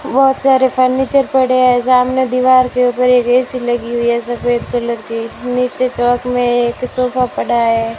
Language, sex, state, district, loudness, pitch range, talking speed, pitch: Hindi, female, Rajasthan, Bikaner, -14 LUFS, 240-255 Hz, 175 wpm, 250 Hz